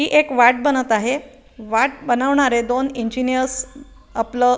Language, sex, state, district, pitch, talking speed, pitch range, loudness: Marathi, female, Maharashtra, Aurangabad, 255 Hz, 145 wpm, 240-275 Hz, -18 LUFS